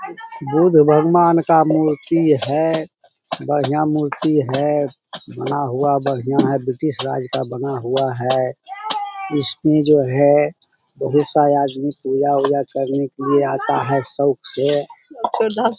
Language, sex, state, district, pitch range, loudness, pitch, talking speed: Hindi, male, Bihar, Jamui, 135-155 Hz, -18 LUFS, 145 Hz, 135 wpm